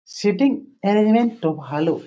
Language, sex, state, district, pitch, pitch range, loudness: Bengali, female, West Bengal, Jhargram, 205 Hz, 160-240 Hz, -20 LUFS